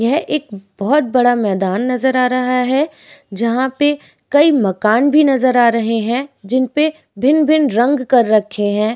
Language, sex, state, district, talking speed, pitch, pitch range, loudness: Hindi, female, Uttar Pradesh, Etah, 165 wpm, 255 Hz, 225-285 Hz, -15 LUFS